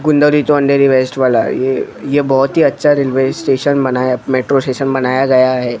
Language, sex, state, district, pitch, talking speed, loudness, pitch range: Hindi, male, Maharashtra, Mumbai Suburban, 135 Hz, 185 wpm, -13 LUFS, 130-145 Hz